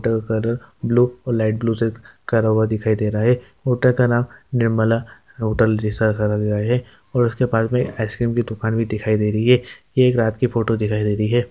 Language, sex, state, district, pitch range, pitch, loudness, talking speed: Hindi, male, Bihar, Jamui, 110-120 Hz, 115 Hz, -20 LUFS, 215 wpm